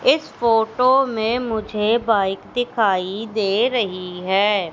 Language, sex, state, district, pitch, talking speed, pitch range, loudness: Hindi, female, Madhya Pradesh, Katni, 220 Hz, 115 wpm, 195-240 Hz, -20 LUFS